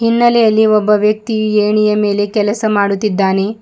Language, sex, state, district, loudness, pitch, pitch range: Kannada, female, Karnataka, Bidar, -13 LUFS, 210 Hz, 210-220 Hz